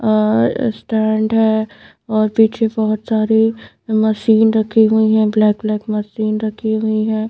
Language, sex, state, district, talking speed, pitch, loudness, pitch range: Hindi, female, Bihar, Patna, 150 wpm, 220 Hz, -16 LUFS, 215-220 Hz